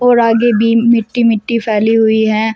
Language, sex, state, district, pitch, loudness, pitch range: Hindi, female, Uttar Pradesh, Shamli, 230 Hz, -12 LUFS, 220-235 Hz